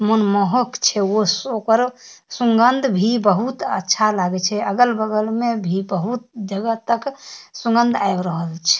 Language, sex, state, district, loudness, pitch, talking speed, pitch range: Maithili, female, Bihar, Darbhanga, -19 LUFS, 220 Hz, 145 wpm, 195-240 Hz